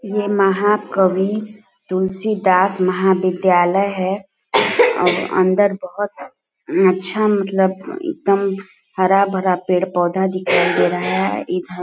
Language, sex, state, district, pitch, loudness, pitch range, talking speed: Hindi, female, Chhattisgarh, Balrampur, 190 Hz, -17 LUFS, 185-200 Hz, 90 wpm